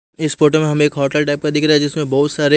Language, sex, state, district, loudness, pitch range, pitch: Hindi, male, Haryana, Jhajjar, -15 LUFS, 145-155 Hz, 150 Hz